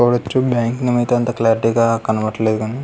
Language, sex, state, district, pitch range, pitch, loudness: Telugu, male, Andhra Pradesh, Krishna, 110-120 Hz, 115 Hz, -17 LUFS